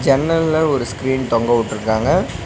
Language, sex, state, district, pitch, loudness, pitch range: Tamil, male, Tamil Nadu, Nilgiris, 130 Hz, -17 LUFS, 115-145 Hz